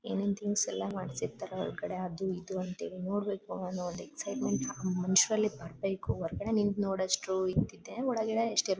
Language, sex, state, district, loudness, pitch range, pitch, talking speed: Kannada, female, Karnataka, Bellary, -33 LUFS, 185-205 Hz, 190 Hz, 135 wpm